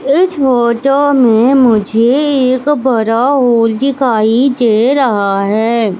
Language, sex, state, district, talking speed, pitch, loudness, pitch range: Hindi, female, Madhya Pradesh, Katni, 110 wpm, 245 Hz, -11 LUFS, 225-275 Hz